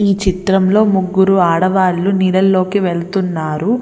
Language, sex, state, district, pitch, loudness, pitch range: Telugu, female, Andhra Pradesh, Visakhapatnam, 190 Hz, -14 LUFS, 185-195 Hz